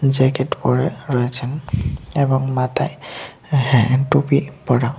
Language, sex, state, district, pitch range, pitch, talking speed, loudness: Bengali, male, Tripura, West Tripura, 125-140 Hz, 130 Hz, 95 wpm, -19 LUFS